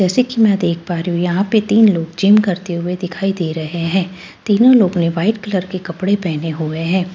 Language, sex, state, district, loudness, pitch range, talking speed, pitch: Hindi, female, Delhi, New Delhi, -16 LUFS, 170-205 Hz, 235 wpm, 185 Hz